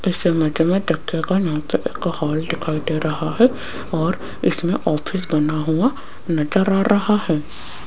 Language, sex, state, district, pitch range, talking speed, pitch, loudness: Hindi, female, Rajasthan, Jaipur, 155-190 Hz, 160 wpm, 165 Hz, -20 LUFS